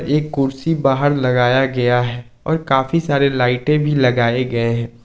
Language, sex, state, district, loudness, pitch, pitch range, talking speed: Hindi, male, Jharkhand, Ranchi, -17 LUFS, 130 Hz, 125-145 Hz, 165 wpm